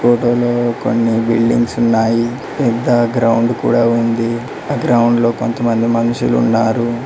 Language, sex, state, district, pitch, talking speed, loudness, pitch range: Telugu, male, Telangana, Mahabubabad, 115 Hz, 120 wpm, -15 LUFS, 115-120 Hz